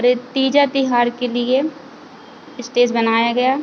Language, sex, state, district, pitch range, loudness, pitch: Hindi, female, Chhattisgarh, Bilaspur, 245-275 Hz, -17 LUFS, 255 Hz